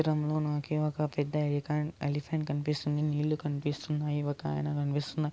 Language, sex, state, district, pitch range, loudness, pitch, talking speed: Telugu, male, Andhra Pradesh, Anantapur, 145-150 Hz, -32 LUFS, 150 Hz, 135 wpm